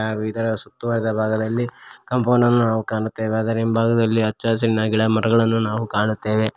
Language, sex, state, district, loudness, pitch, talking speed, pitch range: Kannada, male, Karnataka, Koppal, -20 LUFS, 110 Hz, 145 wpm, 110-115 Hz